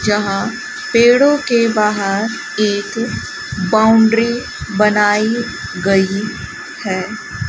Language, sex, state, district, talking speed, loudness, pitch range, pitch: Hindi, male, Rajasthan, Bikaner, 70 wpm, -15 LUFS, 195-235 Hz, 215 Hz